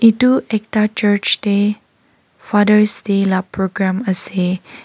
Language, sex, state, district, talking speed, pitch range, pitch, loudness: Nagamese, female, Nagaland, Kohima, 110 wpm, 195-215 Hz, 205 Hz, -15 LUFS